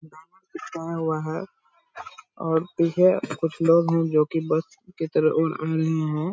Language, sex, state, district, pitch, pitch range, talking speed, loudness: Hindi, male, Bihar, Purnia, 165 Hz, 160-180 Hz, 105 wpm, -23 LUFS